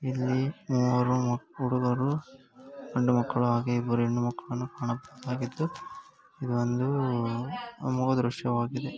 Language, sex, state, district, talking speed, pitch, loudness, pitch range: Kannada, male, Karnataka, Gulbarga, 95 wpm, 125 Hz, -29 LUFS, 120-140 Hz